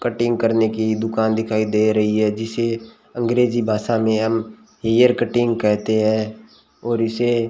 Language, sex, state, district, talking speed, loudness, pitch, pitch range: Hindi, male, Rajasthan, Bikaner, 160 wpm, -19 LUFS, 115 Hz, 110-120 Hz